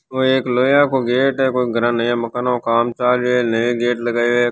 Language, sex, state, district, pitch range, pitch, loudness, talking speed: Hindi, male, Rajasthan, Nagaur, 120-125 Hz, 125 Hz, -17 LUFS, 225 wpm